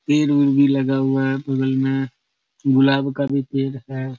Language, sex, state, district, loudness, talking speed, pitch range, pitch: Hindi, male, Bihar, Madhepura, -19 LUFS, 170 wpm, 135-140 Hz, 135 Hz